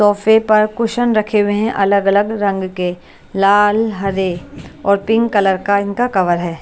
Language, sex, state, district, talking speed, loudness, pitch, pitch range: Hindi, female, Punjab, Kapurthala, 165 wpm, -15 LUFS, 200 Hz, 195-215 Hz